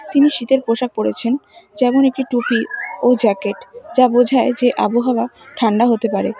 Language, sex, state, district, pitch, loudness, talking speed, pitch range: Bengali, female, West Bengal, Alipurduar, 250 Hz, -17 LUFS, 150 wpm, 235-265 Hz